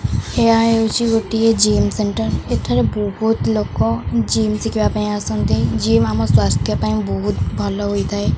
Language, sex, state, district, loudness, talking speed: Odia, female, Odisha, Khordha, -17 LUFS, 135 wpm